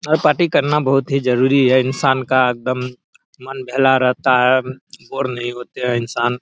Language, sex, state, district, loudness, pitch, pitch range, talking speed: Maithili, male, Bihar, Araria, -17 LUFS, 130 Hz, 125-135 Hz, 185 wpm